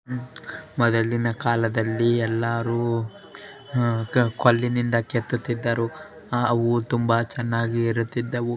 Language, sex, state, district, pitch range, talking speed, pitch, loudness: Kannada, male, Karnataka, Bellary, 115-120 Hz, 75 wpm, 120 Hz, -23 LUFS